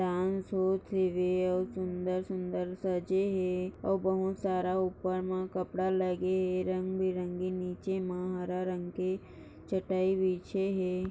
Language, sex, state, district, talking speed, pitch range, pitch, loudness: Hindi, female, Maharashtra, Dhule, 115 wpm, 180-190 Hz, 185 Hz, -33 LUFS